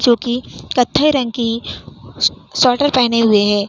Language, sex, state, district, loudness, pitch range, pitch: Hindi, female, Uttar Pradesh, Hamirpur, -15 LUFS, 230-255 Hz, 240 Hz